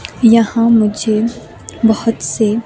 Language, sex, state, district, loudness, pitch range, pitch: Hindi, female, Himachal Pradesh, Shimla, -13 LUFS, 215-230 Hz, 225 Hz